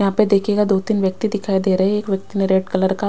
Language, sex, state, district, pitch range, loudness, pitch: Hindi, female, Chhattisgarh, Raipur, 190-210 Hz, -18 LUFS, 195 Hz